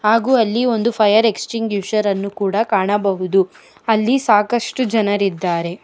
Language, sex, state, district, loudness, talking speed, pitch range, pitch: Kannada, female, Karnataka, Bangalore, -17 LUFS, 125 wpm, 195-230 Hz, 215 Hz